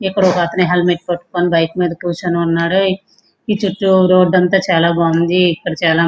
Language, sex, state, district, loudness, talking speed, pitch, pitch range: Telugu, male, Andhra Pradesh, Srikakulam, -14 LUFS, 170 wpm, 175 Hz, 170-185 Hz